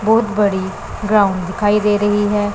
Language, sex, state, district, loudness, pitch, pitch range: Hindi, male, Punjab, Pathankot, -16 LUFS, 205 Hz, 200-210 Hz